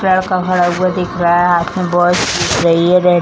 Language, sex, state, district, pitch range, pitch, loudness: Hindi, female, Bihar, Jamui, 175-180 Hz, 180 Hz, -13 LUFS